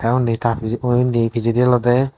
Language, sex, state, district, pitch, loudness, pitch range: Chakma, male, Tripura, Dhalai, 120 Hz, -18 LUFS, 115-125 Hz